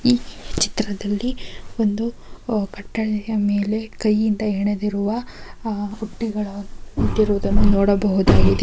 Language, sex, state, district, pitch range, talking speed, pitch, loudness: Kannada, female, Karnataka, Shimoga, 200-220 Hz, 75 wpm, 210 Hz, -21 LUFS